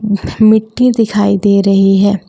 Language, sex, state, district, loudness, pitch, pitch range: Hindi, female, Jharkhand, Palamu, -11 LUFS, 205 Hz, 200-220 Hz